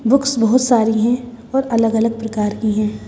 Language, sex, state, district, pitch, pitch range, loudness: Hindi, female, Madhya Pradesh, Bhopal, 225 Hz, 220-245 Hz, -17 LUFS